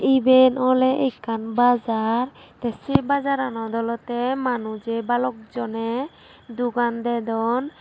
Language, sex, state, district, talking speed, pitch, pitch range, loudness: Chakma, female, Tripura, Dhalai, 100 wpm, 240 Hz, 230-255 Hz, -22 LUFS